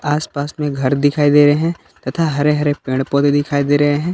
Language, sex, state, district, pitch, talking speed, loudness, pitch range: Hindi, male, Jharkhand, Palamu, 145 Hz, 245 wpm, -16 LUFS, 140-150 Hz